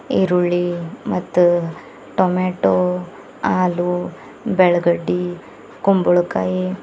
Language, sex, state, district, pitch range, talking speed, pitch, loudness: Kannada, male, Karnataka, Bidar, 175-180 Hz, 60 wpm, 175 Hz, -18 LUFS